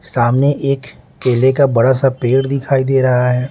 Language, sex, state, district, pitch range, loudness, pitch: Hindi, male, Bihar, Patna, 125-140 Hz, -14 LUFS, 130 Hz